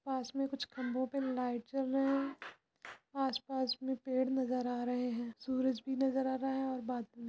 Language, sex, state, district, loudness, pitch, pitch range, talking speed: Hindi, female, Uttar Pradesh, Muzaffarnagar, -37 LUFS, 260 Hz, 250-270 Hz, 195 wpm